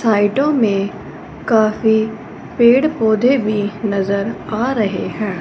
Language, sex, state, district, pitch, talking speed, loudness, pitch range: Hindi, female, Punjab, Fazilka, 220 Hz, 110 wpm, -16 LUFS, 205-235 Hz